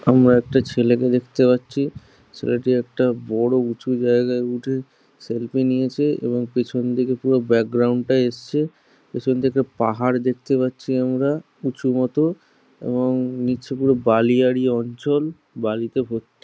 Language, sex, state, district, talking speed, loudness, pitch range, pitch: Bengali, male, West Bengal, Jhargram, 125 wpm, -21 LUFS, 120-130 Hz, 125 Hz